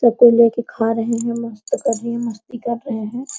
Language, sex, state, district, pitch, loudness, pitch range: Hindi, female, Bihar, Araria, 235 Hz, -19 LUFS, 230-240 Hz